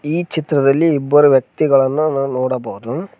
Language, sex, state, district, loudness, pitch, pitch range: Kannada, male, Karnataka, Koppal, -15 LUFS, 145 Hz, 135-155 Hz